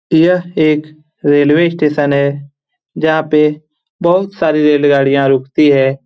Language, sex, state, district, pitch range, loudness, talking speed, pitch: Hindi, male, Bihar, Lakhisarai, 140-155 Hz, -12 LUFS, 120 wpm, 150 Hz